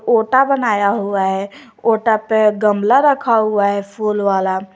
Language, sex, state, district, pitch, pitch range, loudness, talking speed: Hindi, female, Jharkhand, Garhwa, 215 Hz, 200-230 Hz, -15 LUFS, 150 wpm